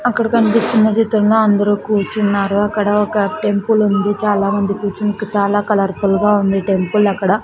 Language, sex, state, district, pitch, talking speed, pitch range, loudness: Telugu, female, Andhra Pradesh, Sri Satya Sai, 205 Hz, 135 wpm, 200-215 Hz, -15 LUFS